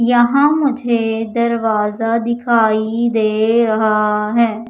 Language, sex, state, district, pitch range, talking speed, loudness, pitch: Hindi, female, Madhya Pradesh, Umaria, 220-235 Hz, 90 wpm, -15 LUFS, 230 Hz